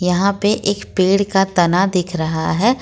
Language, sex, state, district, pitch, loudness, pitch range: Hindi, female, Jharkhand, Ranchi, 190 Hz, -17 LUFS, 175-200 Hz